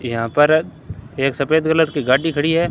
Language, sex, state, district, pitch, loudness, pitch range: Hindi, male, Rajasthan, Bikaner, 145 Hz, -17 LUFS, 130-160 Hz